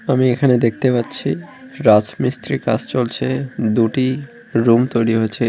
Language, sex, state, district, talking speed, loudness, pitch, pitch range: Bengali, male, West Bengal, Cooch Behar, 120 wpm, -17 LUFS, 120 Hz, 115-130 Hz